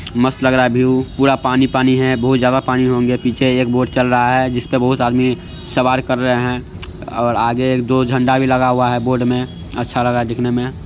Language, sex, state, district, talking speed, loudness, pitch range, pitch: Hindi, male, Bihar, Araria, 245 wpm, -15 LUFS, 120-130 Hz, 125 Hz